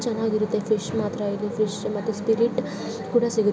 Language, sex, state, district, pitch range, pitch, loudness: Kannada, female, Karnataka, Shimoga, 210-225 Hz, 215 Hz, -25 LUFS